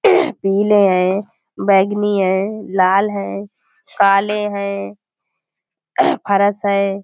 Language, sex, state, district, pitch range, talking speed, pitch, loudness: Hindi, female, Uttar Pradesh, Budaun, 190-205 Hz, 85 wpm, 200 Hz, -16 LUFS